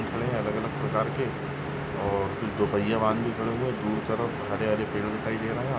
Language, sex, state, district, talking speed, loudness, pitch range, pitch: Hindi, male, Chhattisgarh, Rajnandgaon, 250 wpm, -28 LUFS, 105-115 Hz, 110 Hz